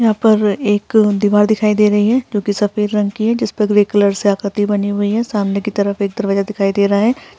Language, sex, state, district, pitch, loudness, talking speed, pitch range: Hindi, female, Bihar, Darbhanga, 205 Hz, -15 LUFS, 250 wpm, 200-215 Hz